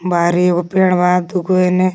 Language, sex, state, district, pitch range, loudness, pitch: Magahi, female, Jharkhand, Palamu, 175-185 Hz, -14 LUFS, 180 Hz